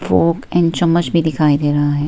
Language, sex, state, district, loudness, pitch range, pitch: Hindi, female, Himachal Pradesh, Shimla, -15 LUFS, 145-170 Hz, 150 Hz